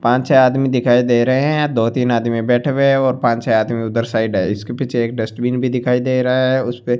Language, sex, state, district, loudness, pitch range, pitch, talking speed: Hindi, male, Rajasthan, Bikaner, -16 LUFS, 115-130 Hz, 125 Hz, 265 wpm